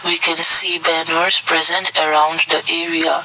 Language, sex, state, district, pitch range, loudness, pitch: English, male, Assam, Kamrup Metropolitan, 165-175 Hz, -14 LUFS, 165 Hz